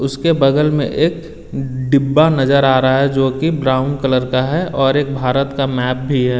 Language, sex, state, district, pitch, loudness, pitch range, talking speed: Hindi, male, Delhi, New Delhi, 135 Hz, -15 LUFS, 130-145 Hz, 205 wpm